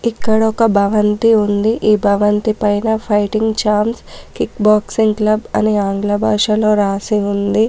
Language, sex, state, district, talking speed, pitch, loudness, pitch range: Telugu, female, Telangana, Komaram Bheem, 130 wpm, 215 Hz, -15 LUFS, 205-220 Hz